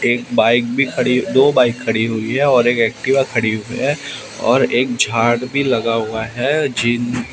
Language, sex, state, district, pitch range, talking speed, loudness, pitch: Hindi, male, Maharashtra, Mumbai Suburban, 115-130 Hz, 190 wpm, -16 LUFS, 120 Hz